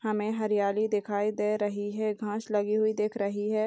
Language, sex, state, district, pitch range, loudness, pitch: Hindi, male, Bihar, Purnia, 205-215 Hz, -29 LUFS, 210 Hz